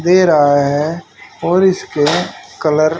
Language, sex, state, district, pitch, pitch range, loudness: Hindi, male, Haryana, Jhajjar, 155 Hz, 150-175 Hz, -14 LUFS